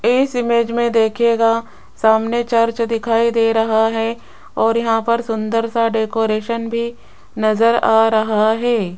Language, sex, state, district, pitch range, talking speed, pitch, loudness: Hindi, female, Rajasthan, Jaipur, 225-235 Hz, 140 wpm, 230 Hz, -17 LUFS